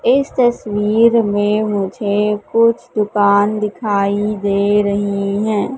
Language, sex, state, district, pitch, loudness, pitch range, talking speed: Hindi, female, Madhya Pradesh, Katni, 210 Hz, -16 LUFS, 205-225 Hz, 105 wpm